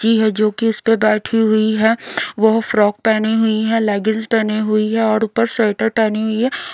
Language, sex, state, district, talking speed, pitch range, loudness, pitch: Hindi, female, Odisha, Khordha, 220 wpm, 215-225 Hz, -16 LUFS, 220 Hz